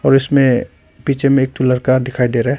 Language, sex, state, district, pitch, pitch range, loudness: Hindi, male, Arunachal Pradesh, Longding, 130 Hz, 125-135 Hz, -15 LUFS